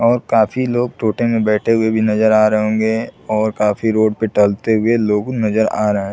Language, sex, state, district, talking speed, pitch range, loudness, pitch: Hindi, male, Chhattisgarh, Bilaspur, 225 wpm, 105-115 Hz, -16 LUFS, 110 Hz